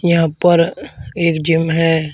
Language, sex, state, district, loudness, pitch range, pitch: Hindi, male, Uttar Pradesh, Shamli, -15 LUFS, 160-170 Hz, 165 Hz